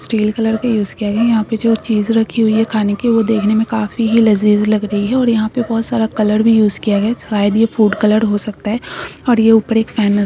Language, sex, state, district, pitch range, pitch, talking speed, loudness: Hindi, female, West Bengal, Jhargram, 210-225 Hz, 220 Hz, 285 wpm, -14 LUFS